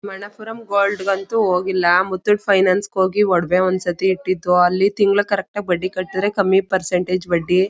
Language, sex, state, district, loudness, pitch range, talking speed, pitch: Kannada, female, Karnataka, Mysore, -18 LUFS, 185-200 Hz, 165 wpm, 190 Hz